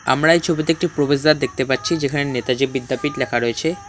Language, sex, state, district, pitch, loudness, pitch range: Bengali, male, West Bengal, Alipurduar, 145 Hz, -19 LUFS, 130-160 Hz